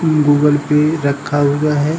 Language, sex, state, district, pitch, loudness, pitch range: Hindi, male, Uttar Pradesh, Hamirpur, 150 Hz, -14 LUFS, 145-150 Hz